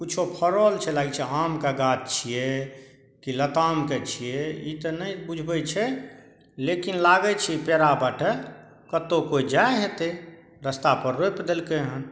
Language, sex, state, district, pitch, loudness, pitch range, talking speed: Maithili, male, Bihar, Saharsa, 160 Hz, -25 LUFS, 135-170 Hz, 145 wpm